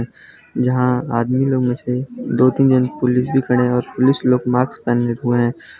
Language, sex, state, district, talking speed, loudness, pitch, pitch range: Hindi, male, Gujarat, Valsad, 195 wpm, -17 LUFS, 125 Hz, 125-130 Hz